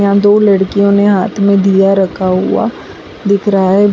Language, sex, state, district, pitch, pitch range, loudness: Hindi, female, Bihar, West Champaran, 200 Hz, 195-200 Hz, -11 LUFS